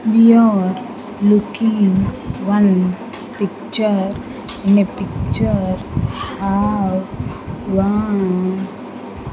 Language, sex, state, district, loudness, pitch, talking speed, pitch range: English, female, Andhra Pradesh, Sri Satya Sai, -17 LUFS, 200 Hz, 70 wpm, 195-220 Hz